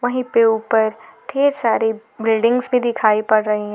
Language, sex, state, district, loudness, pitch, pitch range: Hindi, female, Jharkhand, Garhwa, -18 LUFS, 225 Hz, 220-245 Hz